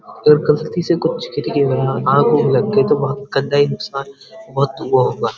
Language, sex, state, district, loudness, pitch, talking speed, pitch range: Hindi, male, Uttarakhand, Uttarkashi, -16 LUFS, 145 Hz, 145 wpm, 140-160 Hz